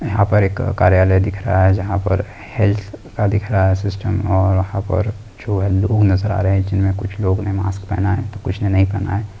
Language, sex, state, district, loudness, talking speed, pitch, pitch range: Hindi, male, Bihar, Jamui, -18 LUFS, 240 wpm, 100 Hz, 95-105 Hz